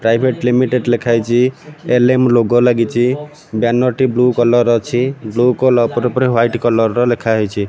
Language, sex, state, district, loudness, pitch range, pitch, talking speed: Odia, male, Odisha, Malkangiri, -14 LUFS, 120-125 Hz, 120 Hz, 150 wpm